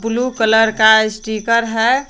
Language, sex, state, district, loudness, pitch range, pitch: Hindi, female, Jharkhand, Garhwa, -14 LUFS, 220-230 Hz, 225 Hz